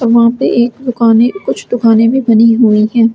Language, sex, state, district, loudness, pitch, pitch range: Hindi, female, Delhi, New Delhi, -10 LUFS, 230 Hz, 225-240 Hz